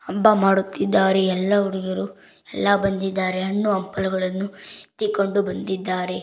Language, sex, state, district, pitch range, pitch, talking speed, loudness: Kannada, female, Karnataka, Bangalore, 190-200 Hz, 195 Hz, 95 wpm, -21 LUFS